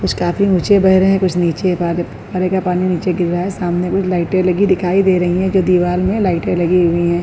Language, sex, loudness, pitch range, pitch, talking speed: Urdu, female, -15 LUFS, 175-190 Hz, 180 Hz, 250 wpm